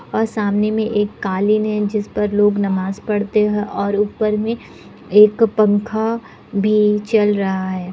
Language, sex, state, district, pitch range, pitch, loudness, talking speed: Hindi, female, Bihar, Kishanganj, 205-215 Hz, 210 Hz, -17 LUFS, 165 wpm